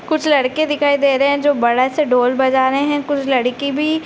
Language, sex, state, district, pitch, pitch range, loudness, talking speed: Hindi, female, Bihar, Gopalganj, 280 Hz, 260-295 Hz, -16 LUFS, 265 wpm